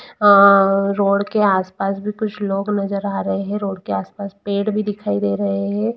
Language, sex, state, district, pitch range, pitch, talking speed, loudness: Hindi, female, Bihar, East Champaran, 195-205 Hz, 200 Hz, 220 wpm, -18 LUFS